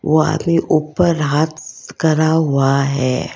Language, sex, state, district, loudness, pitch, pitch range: Hindi, female, Karnataka, Bangalore, -16 LUFS, 155 Hz, 140-160 Hz